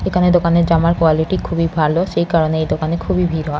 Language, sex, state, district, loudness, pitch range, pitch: Bengali, female, West Bengal, North 24 Parganas, -16 LUFS, 160-170 Hz, 165 Hz